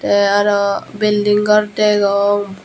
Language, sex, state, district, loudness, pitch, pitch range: Chakma, male, Tripura, Unakoti, -15 LUFS, 205 Hz, 200-210 Hz